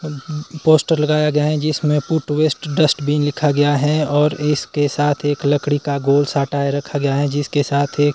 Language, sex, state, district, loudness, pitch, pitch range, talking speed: Hindi, male, Himachal Pradesh, Shimla, -17 LUFS, 145 Hz, 145-150 Hz, 185 wpm